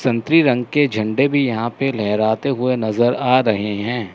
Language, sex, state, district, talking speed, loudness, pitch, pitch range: Hindi, male, Chandigarh, Chandigarh, 190 wpm, -18 LUFS, 120 Hz, 110-135 Hz